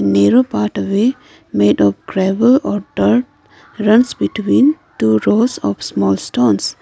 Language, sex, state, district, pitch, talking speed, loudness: English, female, Arunachal Pradesh, Lower Dibang Valley, 205 Hz, 130 wpm, -15 LUFS